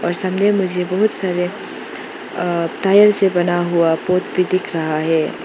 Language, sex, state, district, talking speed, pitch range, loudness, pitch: Hindi, female, Arunachal Pradesh, Lower Dibang Valley, 165 wpm, 170-190 Hz, -17 LUFS, 180 Hz